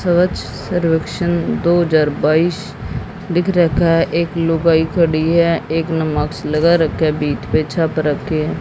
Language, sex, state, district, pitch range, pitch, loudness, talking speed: Hindi, female, Haryana, Jhajjar, 155-170 Hz, 165 Hz, -16 LUFS, 140 wpm